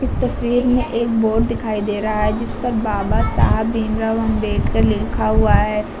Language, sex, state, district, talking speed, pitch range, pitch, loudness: Hindi, female, Uttar Pradesh, Lucknow, 180 wpm, 210-230 Hz, 220 Hz, -18 LUFS